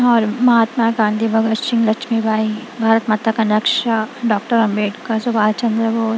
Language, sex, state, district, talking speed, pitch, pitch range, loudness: Hindi, female, Punjab, Kapurthala, 135 wpm, 225 Hz, 215-230 Hz, -17 LUFS